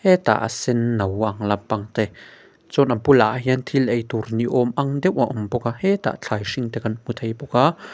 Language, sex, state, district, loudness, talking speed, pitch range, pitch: Mizo, male, Mizoram, Aizawl, -21 LUFS, 235 wpm, 110-135 Hz, 120 Hz